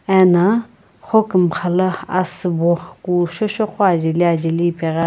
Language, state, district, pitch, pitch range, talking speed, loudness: Sumi, Nagaland, Kohima, 180 Hz, 170-190 Hz, 120 wpm, -17 LUFS